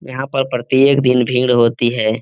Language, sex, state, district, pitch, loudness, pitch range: Hindi, male, Bihar, Lakhisarai, 125 Hz, -15 LUFS, 120-135 Hz